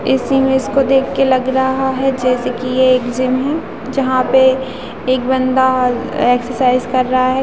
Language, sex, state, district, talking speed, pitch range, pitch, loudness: Hindi, female, Bihar, Sitamarhi, 175 wpm, 255-265 Hz, 260 Hz, -15 LUFS